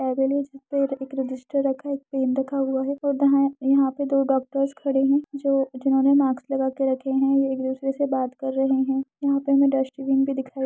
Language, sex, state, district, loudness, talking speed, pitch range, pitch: Hindi, female, Uttar Pradesh, Ghazipur, -23 LUFS, 225 wpm, 265-275 Hz, 270 Hz